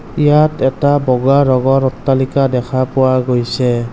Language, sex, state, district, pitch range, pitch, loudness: Assamese, male, Assam, Kamrup Metropolitan, 125-140 Hz, 130 Hz, -13 LUFS